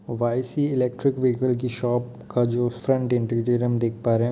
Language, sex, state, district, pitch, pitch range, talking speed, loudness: Hindi, male, Bihar, Muzaffarpur, 120 Hz, 120-125 Hz, 195 wpm, -24 LUFS